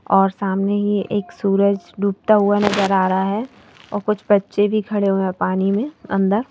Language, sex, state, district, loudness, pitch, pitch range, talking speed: Hindi, female, Madhya Pradesh, Bhopal, -19 LUFS, 200 Hz, 195-205 Hz, 175 wpm